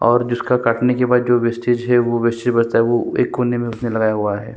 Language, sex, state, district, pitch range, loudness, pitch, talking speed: Hindi, male, Chhattisgarh, Sukma, 115-120 Hz, -17 LUFS, 120 Hz, 260 wpm